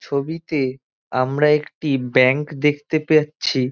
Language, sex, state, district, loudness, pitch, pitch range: Bengali, male, West Bengal, Dakshin Dinajpur, -19 LUFS, 145 Hz, 130-150 Hz